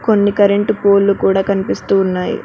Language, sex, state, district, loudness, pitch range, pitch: Telugu, female, Telangana, Mahabubabad, -14 LUFS, 195-205 Hz, 200 Hz